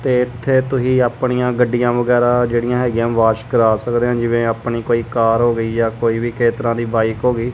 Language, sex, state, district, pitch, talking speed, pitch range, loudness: Punjabi, male, Punjab, Kapurthala, 120 Hz, 215 wpm, 115-125 Hz, -16 LUFS